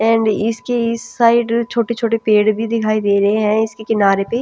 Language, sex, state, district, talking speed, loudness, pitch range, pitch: Hindi, female, Punjab, Pathankot, 190 wpm, -16 LUFS, 215-230 Hz, 225 Hz